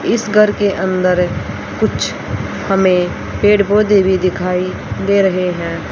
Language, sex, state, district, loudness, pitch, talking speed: Hindi, female, Haryana, Rohtak, -15 LUFS, 185 Hz, 130 wpm